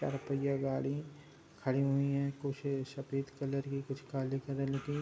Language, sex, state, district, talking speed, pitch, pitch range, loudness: Hindi, male, Uttar Pradesh, Gorakhpur, 165 wpm, 140 Hz, 135-140 Hz, -36 LUFS